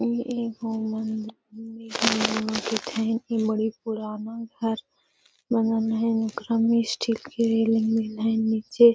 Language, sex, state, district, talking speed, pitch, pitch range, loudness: Magahi, female, Bihar, Gaya, 115 wpm, 225 Hz, 220-230 Hz, -26 LUFS